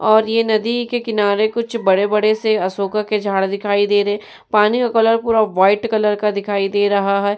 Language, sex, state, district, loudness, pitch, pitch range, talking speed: Hindi, female, Uttar Pradesh, Jyotiba Phule Nagar, -17 LUFS, 210 Hz, 200-220 Hz, 205 wpm